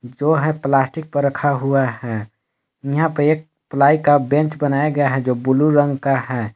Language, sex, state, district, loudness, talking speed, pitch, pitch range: Hindi, male, Jharkhand, Palamu, -18 LUFS, 190 wpm, 140 Hz, 130-150 Hz